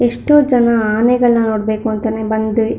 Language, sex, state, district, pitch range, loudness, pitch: Kannada, female, Karnataka, Shimoga, 220-240 Hz, -14 LUFS, 225 Hz